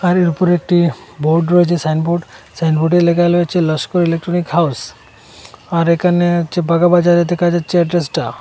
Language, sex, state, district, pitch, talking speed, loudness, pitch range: Bengali, male, Assam, Hailakandi, 170 Hz, 135 wpm, -14 LUFS, 165-175 Hz